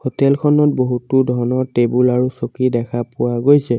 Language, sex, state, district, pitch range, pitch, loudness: Assamese, male, Assam, Sonitpur, 120-135 Hz, 125 Hz, -16 LUFS